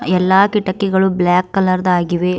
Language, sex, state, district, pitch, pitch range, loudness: Kannada, female, Karnataka, Bidar, 185 Hz, 180-190 Hz, -15 LUFS